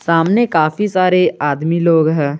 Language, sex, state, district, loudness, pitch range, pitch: Hindi, male, Jharkhand, Garhwa, -14 LUFS, 155-180 Hz, 165 Hz